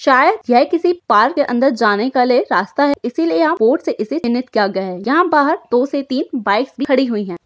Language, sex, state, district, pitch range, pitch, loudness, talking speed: Hindi, female, Maharashtra, Aurangabad, 235-295 Hz, 260 Hz, -15 LUFS, 225 wpm